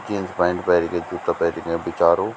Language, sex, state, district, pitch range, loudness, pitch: Garhwali, male, Uttarakhand, Tehri Garhwal, 85-90 Hz, -21 LUFS, 90 Hz